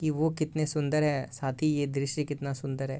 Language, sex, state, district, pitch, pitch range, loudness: Hindi, male, Bihar, East Champaran, 145 Hz, 140-155 Hz, -30 LUFS